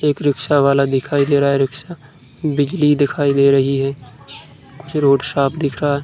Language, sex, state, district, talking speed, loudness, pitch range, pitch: Hindi, male, Uttar Pradesh, Muzaffarnagar, 180 wpm, -16 LUFS, 135-145 Hz, 140 Hz